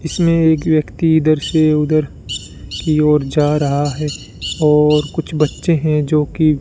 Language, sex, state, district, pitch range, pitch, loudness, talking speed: Hindi, male, Rajasthan, Bikaner, 150-160 Hz, 150 Hz, -15 LUFS, 165 wpm